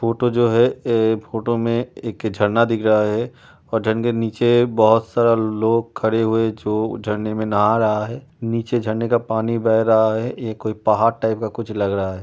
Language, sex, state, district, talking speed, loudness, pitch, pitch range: Hindi, male, Uttar Pradesh, Jyotiba Phule Nagar, 205 wpm, -19 LUFS, 110 Hz, 110-115 Hz